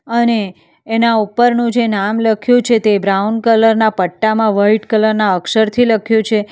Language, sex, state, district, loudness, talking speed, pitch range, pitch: Gujarati, female, Gujarat, Valsad, -13 LUFS, 165 wpm, 210-230 Hz, 220 Hz